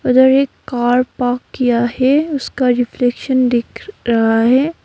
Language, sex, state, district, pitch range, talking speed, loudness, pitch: Hindi, female, West Bengal, Darjeeling, 240-265 Hz, 135 wpm, -15 LUFS, 250 Hz